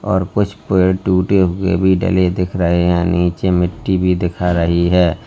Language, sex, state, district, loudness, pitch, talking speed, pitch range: Hindi, male, Uttar Pradesh, Lalitpur, -15 LUFS, 90 Hz, 180 wpm, 90-95 Hz